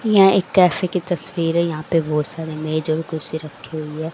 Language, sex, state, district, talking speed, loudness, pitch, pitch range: Hindi, female, Haryana, Rohtak, 230 wpm, -20 LUFS, 160 Hz, 155-180 Hz